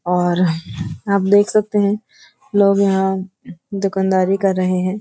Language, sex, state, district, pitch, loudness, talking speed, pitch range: Hindi, female, Uttar Pradesh, Varanasi, 195 Hz, -17 LUFS, 130 wpm, 185-200 Hz